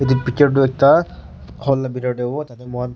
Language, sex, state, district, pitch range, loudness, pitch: Nagamese, male, Nagaland, Kohima, 125-135 Hz, -17 LUFS, 130 Hz